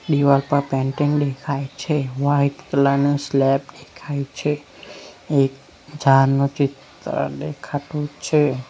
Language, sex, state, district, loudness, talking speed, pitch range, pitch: Gujarati, male, Gujarat, Valsad, -20 LUFS, 110 wpm, 135-145 Hz, 140 Hz